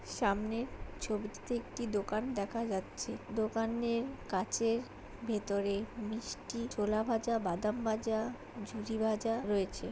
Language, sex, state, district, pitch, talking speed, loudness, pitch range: Bengali, male, West Bengal, Jhargram, 220 Hz, 95 wpm, -36 LUFS, 210-230 Hz